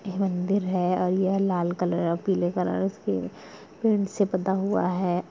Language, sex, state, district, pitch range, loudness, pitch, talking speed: Hindi, female, Bihar, Gaya, 180-195 Hz, -26 LUFS, 185 Hz, 180 wpm